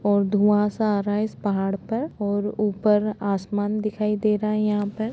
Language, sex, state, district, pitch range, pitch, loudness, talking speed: Hindi, female, Jharkhand, Jamtara, 205-215 Hz, 210 Hz, -23 LUFS, 220 wpm